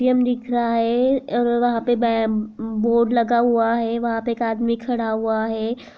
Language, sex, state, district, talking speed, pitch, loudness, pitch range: Hindi, female, Maharashtra, Aurangabad, 200 wpm, 235 Hz, -20 LUFS, 225-240 Hz